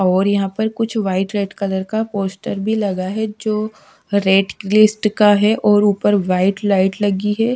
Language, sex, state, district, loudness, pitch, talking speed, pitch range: Hindi, female, Odisha, Sambalpur, -17 LUFS, 205 Hz, 180 wpm, 195-215 Hz